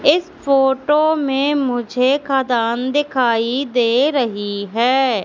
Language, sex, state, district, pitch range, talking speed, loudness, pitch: Hindi, female, Madhya Pradesh, Katni, 240-285 Hz, 105 wpm, -17 LUFS, 265 Hz